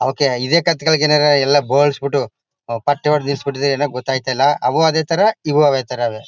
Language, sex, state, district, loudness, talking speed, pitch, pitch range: Kannada, male, Karnataka, Mysore, -16 LUFS, 170 wpm, 140 Hz, 130-150 Hz